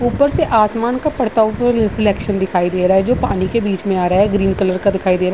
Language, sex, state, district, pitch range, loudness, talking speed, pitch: Hindi, female, Bihar, Vaishali, 190-230 Hz, -16 LUFS, 290 wpm, 200 Hz